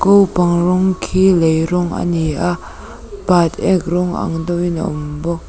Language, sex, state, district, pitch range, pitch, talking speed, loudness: Mizo, female, Mizoram, Aizawl, 165-185 Hz, 175 Hz, 175 wpm, -16 LUFS